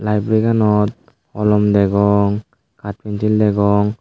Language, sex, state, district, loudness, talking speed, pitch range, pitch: Chakma, male, Tripura, Dhalai, -16 LUFS, 105 wpm, 100-110 Hz, 105 Hz